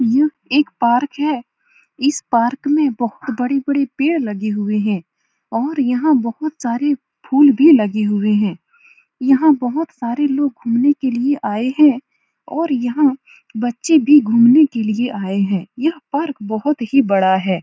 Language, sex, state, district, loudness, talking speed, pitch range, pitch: Hindi, female, Uttar Pradesh, Etah, -16 LUFS, 155 wpm, 230-295 Hz, 265 Hz